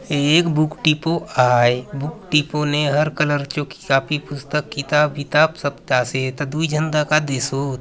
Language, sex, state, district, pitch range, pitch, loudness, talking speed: Halbi, male, Chhattisgarh, Bastar, 140-155 Hz, 150 Hz, -19 LUFS, 175 wpm